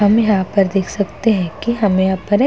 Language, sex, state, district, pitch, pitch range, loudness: Hindi, female, Uttar Pradesh, Hamirpur, 200 Hz, 190-215 Hz, -16 LUFS